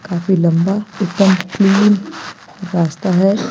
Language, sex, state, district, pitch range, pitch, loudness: Hindi, female, Himachal Pradesh, Shimla, 180-200 Hz, 190 Hz, -15 LUFS